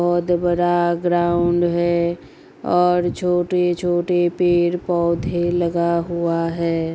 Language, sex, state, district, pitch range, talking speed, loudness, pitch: Hindi, female, Uttar Pradesh, Gorakhpur, 170-175 Hz, 105 wpm, -19 LUFS, 175 Hz